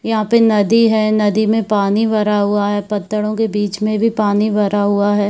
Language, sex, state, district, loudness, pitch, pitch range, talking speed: Hindi, female, Chhattisgarh, Bilaspur, -15 LUFS, 210 Hz, 205-220 Hz, 215 wpm